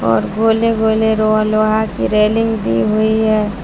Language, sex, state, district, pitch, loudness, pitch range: Hindi, female, Jharkhand, Palamu, 215 Hz, -14 LUFS, 210-220 Hz